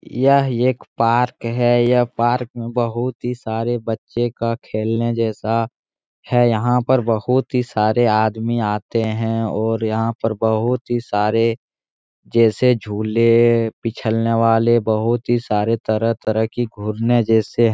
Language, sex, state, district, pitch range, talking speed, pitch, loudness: Hindi, male, Bihar, Jahanabad, 110-120 Hz, 135 wpm, 115 Hz, -18 LUFS